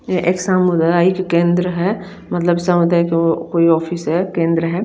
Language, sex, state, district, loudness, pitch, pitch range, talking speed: Hindi, female, Chandigarh, Chandigarh, -16 LUFS, 175 Hz, 170-180 Hz, 200 wpm